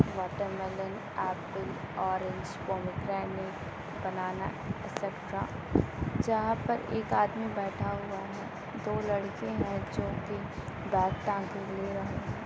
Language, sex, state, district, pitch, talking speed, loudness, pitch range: Hindi, female, Bihar, Lakhisarai, 195 Hz, 110 wpm, -34 LUFS, 185-200 Hz